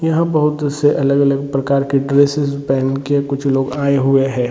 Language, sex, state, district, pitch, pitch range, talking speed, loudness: Hindi, male, Jharkhand, Sahebganj, 140 Hz, 135-145 Hz, 200 wpm, -16 LUFS